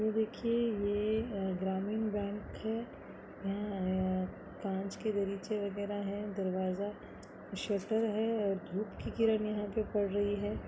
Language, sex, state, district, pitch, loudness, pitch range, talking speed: Kumaoni, female, Uttarakhand, Uttarkashi, 205 Hz, -35 LUFS, 195-215 Hz, 130 wpm